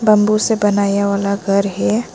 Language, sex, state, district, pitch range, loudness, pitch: Hindi, female, Arunachal Pradesh, Lower Dibang Valley, 200-215 Hz, -16 LUFS, 200 Hz